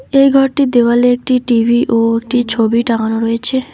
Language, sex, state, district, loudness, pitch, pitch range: Bengali, female, West Bengal, Alipurduar, -13 LUFS, 240 Hz, 230-260 Hz